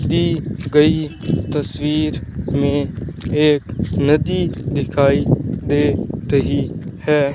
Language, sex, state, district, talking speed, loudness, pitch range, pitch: Hindi, male, Rajasthan, Bikaner, 80 wpm, -18 LUFS, 140-155 Hz, 150 Hz